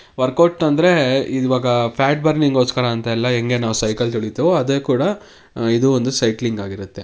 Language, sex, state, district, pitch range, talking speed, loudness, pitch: Kannada, male, Karnataka, Mysore, 115-140 Hz, 145 wpm, -17 LUFS, 125 Hz